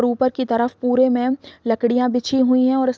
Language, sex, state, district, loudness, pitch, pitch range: Hindi, female, Bihar, East Champaran, -19 LUFS, 255 Hz, 245-260 Hz